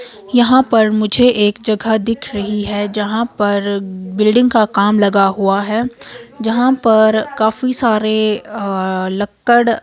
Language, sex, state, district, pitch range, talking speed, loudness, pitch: Hindi, female, Himachal Pradesh, Shimla, 205-235 Hz, 135 wpm, -14 LUFS, 215 Hz